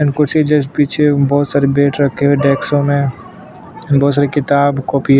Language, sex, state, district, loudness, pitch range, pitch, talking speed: Hindi, male, Chhattisgarh, Sukma, -13 LUFS, 140-145 Hz, 140 Hz, 195 wpm